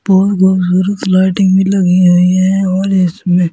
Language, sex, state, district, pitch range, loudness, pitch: Hindi, male, Delhi, New Delhi, 180-195 Hz, -11 LUFS, 190 Hz